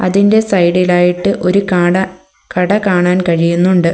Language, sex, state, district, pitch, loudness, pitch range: Malayalam, female, Kerala, Kollam, 180 Hz, -12 LUFS, 175-190 Hz